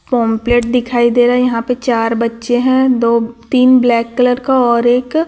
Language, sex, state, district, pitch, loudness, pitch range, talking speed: Hindi, female, Chhattisgarh, Raipur, 245 Hz, -13 LUFS, 235-250 Hz, 195 wpm